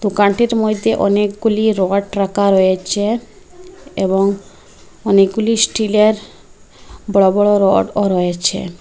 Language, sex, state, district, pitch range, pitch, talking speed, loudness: Bengali, female, Assam, Hailakandi, 195-220 Hz, 205 Hz, 90 wpm, -15 LUFS